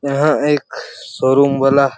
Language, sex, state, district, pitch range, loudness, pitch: Hindi, male, Chhattisgarh, Raigarh, 135-145 Hz, -15 LUFS, 140 Hz